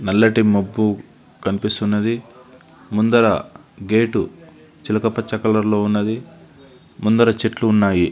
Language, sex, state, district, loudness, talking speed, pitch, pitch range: Telugu, male, Andhra Pradesh, Visakhapatnam, -18 LUFS, 95 wpm, 110 Hz, 105-115 Hz